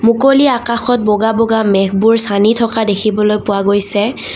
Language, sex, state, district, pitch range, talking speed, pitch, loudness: Assamese, female, Assam, Kamrup Metropolitan, 205-230 Hz, 140 wpm, 220 Hz, -12 LUFS